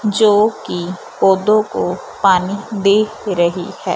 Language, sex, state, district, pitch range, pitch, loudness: Hindi, female, Punjab, Fazilka, 185-215 Hz, 200 Hz, -16 LUFS